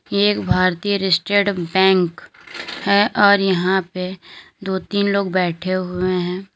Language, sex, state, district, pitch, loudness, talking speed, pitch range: Hindi, female, Uttar Pradesh, Lalitpur, 190 Hz, -18 LUFS, 135 wpm, 185-200 Hz